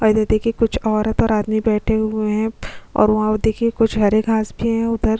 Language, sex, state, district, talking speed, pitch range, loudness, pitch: Hindi, female, Chhattisgarh, Kabirdham, 230 wpm, 215-225 Hz, -18 LUFS, 220 Hz